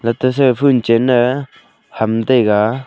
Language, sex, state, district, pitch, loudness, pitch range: Wancho, male, Arunachal Pradesh, Longding, 125 Hz, -14 LUFS, 115-130 Hz